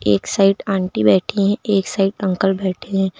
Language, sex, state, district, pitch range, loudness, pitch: Hindi, female, Uttar Pradesh, Lucknow, 190-200 Hz, -18 LUFS, 195 Hz